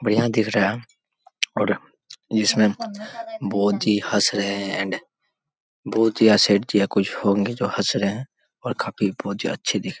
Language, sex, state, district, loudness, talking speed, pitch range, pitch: Hindi, male, Jharkhand, Jamtara, -22 LUFS, 170 wpm, 100-115 Hz, 105 Hz